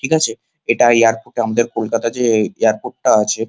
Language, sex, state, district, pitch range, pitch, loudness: Bengali, male, West Bengal, Kolkata, 115-120 Hz, 115 Hz, -16 LUFS